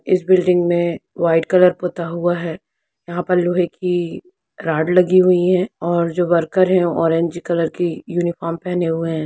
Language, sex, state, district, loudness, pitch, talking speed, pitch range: Hindi, female, Jharkhand, Jamtara, -18 LUFS, 175 Hz, 175 wpm, 170-180 Hz